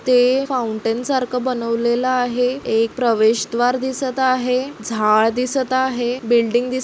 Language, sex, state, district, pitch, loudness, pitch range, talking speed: Marathi, female, Maharashtra, Solapur, 250 Hz, -18 LUFS, 235-255 Hz, 130 wpm